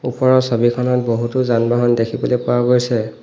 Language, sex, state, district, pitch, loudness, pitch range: Assamese, male, Assam, Hailakandi, 120 Hz, -16 LUFS, 120-125 Hz